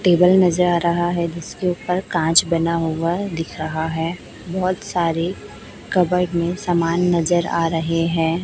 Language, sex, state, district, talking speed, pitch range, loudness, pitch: Hindi, female, Chhattisgarh, Raipur, 155 wpm, 165-180 Hz, -19 LUFS, 170 Hz